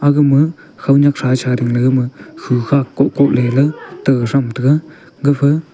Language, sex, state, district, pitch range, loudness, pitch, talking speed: Wancho, male, Arunachal Pradesh, Longding, 125-145 Hz, -15 LUFS, 140 Hz, 125 wpm